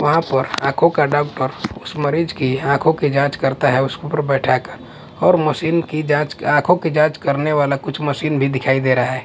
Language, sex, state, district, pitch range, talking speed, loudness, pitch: Hindi, male, Punjab, Kapurthala, 135-155 Hz, 220 wpm, -17 LUFS, 145 Hz